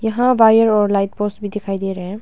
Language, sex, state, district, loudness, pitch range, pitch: Hindi, female, Arunachal Pradesh, Longding, -16 LUFS, 195-220 Hz, 205 Hz